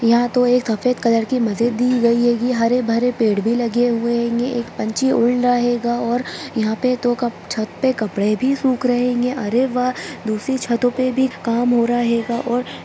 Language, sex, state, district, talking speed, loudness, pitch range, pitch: Hindi, female, Bihar, Darbhanga, 205 wpm, -18 LUFS, 235-250 Hz, 240 Hz